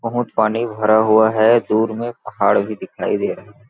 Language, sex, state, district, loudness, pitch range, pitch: Hindi, male, Chhattisgarh, Balrampur, -17 LUFS, 110-120 Hz, 110 Hz